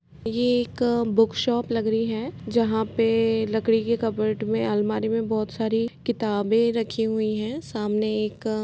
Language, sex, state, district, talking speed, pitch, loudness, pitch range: Hindi, female, Chhattisgarh, Kabirdham, 160 wpm, 225 Hz, -24 LUFS, 215-230 Hz